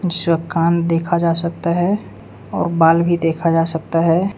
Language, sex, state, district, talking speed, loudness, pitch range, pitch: Hindi, male, Arunachal Pradesh, Lower Dibang Valley, 180 wpm, -17 LUFS, 165-170 Hz, 170 Hz